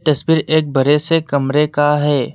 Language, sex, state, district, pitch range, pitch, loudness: Hindi, male, Assam, Kamrup Metropolitan, 145-155 Hz, 150 Hz, -15 LUFS